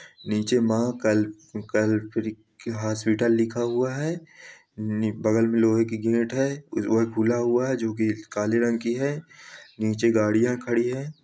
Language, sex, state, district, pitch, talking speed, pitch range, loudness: Hindi, male, Uttar Pradesh, Ghazipur, 115 Hz, 130 wpm, 110-125 Hz, -25 LUFS